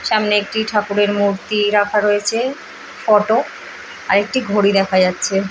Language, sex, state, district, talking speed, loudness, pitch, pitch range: Bengali, female, West Bengal, Purulia, 120 wpm, -16 LUFS, 205 Hz, 200-220 Hz